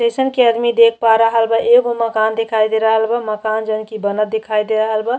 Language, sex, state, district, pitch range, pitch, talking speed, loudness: Bhojpuri, female, Uttar Pradesh, Ghazipur, 220-235 Hz, 225 Hz, 230 wpm, -15 LUFS